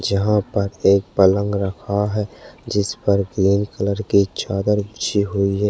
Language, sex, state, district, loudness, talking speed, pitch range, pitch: Hindi, male, Chhattisgarh, Kabirdham, -19 LUFS, 160 wpm, 100-105 Hz, 100 Hz